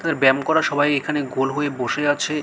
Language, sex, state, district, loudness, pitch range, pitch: Bengali, male, West Bengal, Malda, -20 LUFS, 135-150 Hz, 145 Hz